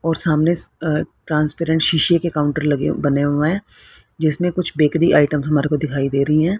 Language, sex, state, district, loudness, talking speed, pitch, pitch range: Hindi, female, Haryana, Rohtak, -17 LUFS, 190 wpm, 155 Hz, 145-165 Hz